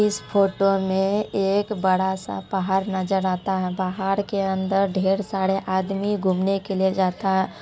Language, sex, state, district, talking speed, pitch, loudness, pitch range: Maithili, female, Bihar, Supaul, 155 wpm, 195 Hz, -23 LUFS, 190-195 Hz